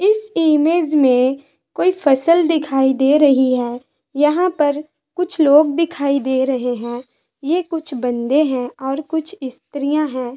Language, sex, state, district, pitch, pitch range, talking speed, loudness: Hindi, female, Bihar, Gopalganj, 285 Hz, 260-320 Hz, 145 wpm, -17 LUFS